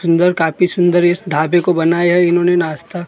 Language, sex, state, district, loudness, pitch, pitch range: Hindi, male, Maharashtra, Gondia, -14 LUFS, 175 Hz, 165-175 Hz